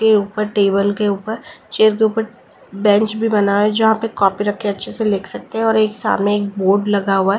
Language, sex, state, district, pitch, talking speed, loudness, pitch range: Hindi, female, Delhi, New Delhi, 210 Hz, 250 wpm, -17 LUFS, 200-220 Hz